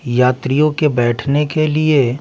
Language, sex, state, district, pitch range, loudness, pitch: Hindi, male, Bihar, Patna, 125-150 Hz, -15 LUFS, 140 Hz